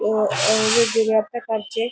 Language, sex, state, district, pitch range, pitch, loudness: Marathi, female, Maharashtra, Pune, 215-230 Hz, 220 Hz, -19 LUFS